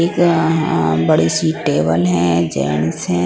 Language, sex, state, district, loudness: Hindi, female, Punjab, Pathankot, -16 LUFS